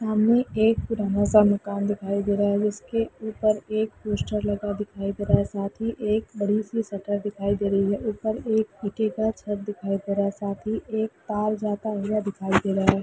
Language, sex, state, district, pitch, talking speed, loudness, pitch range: Hindi, female, Bihar, Lakhisarai, 210 Hz, 215 wpm, -25 LUFS, 200-220 Hz